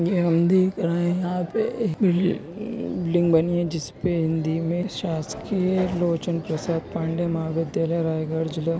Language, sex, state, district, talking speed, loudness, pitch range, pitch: Hindi, female, Chhattisgarh, Raigarh, 125 wpm, -24 LUFS, 165-180 Hz, 170 Hz